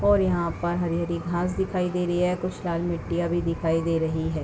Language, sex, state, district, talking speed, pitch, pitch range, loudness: Hindi, female, Uttar Pradesh, Hamirpur, 245 wpm, 175 Hz, 170-180 Hz, -26 LUFS